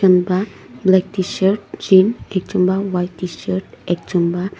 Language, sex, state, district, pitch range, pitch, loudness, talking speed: Nagamese, female, Nagaland, Dimapur, 180-190 Hz, 185 Hz, -18 LUFS, 115 wpm